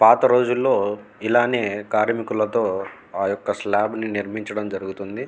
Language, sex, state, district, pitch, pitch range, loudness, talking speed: Telugu, male, Andhra Pradesh, Guntur, 105 Hz, 100-115 Hz, -22 LUFS, 90 wpm